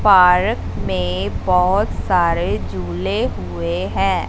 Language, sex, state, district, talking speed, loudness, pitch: Hindi, female, Punjab, Fazilka, 100 wpm, -18 LUFS, 95 Hz